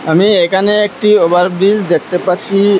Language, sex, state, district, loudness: Bengali, male, Assam, Hailakandi, -11 LUFS